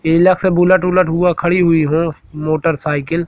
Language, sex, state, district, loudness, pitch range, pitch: Hindi, male, Madhya Pradesh, Katni, -14 LUFS, 160-180 Hz, 170 Hz